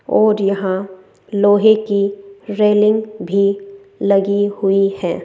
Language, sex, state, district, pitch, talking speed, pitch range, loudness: Hindi, female, Rajasthan, Jaipur, 200 Hz, 105 wpm, 195-210 Hz, -16 LUFS